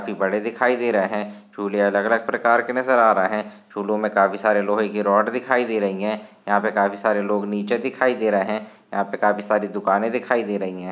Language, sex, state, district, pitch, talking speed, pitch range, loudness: Hindi, male, Karnataka, Gulbarga, 105 Hz, 245 wpm, 100-115 Hz, -21 LUFS